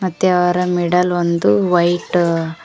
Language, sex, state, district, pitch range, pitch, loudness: Kannada, female, Karnataka, Koppal, 170-180 Hz, 175 Hz, -16 LUFS